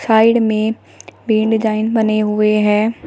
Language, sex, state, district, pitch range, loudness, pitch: Hindi, female, Uttar Pradesh, Shamli, 215-225 Hz, -15 LUFS, 220 Hz